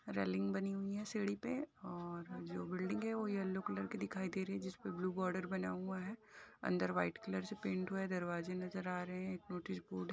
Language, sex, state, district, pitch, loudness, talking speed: Hindi, female, Uttar Pradesh, Hamirpur, 185 Hz, -42 LUFS, 245 wpm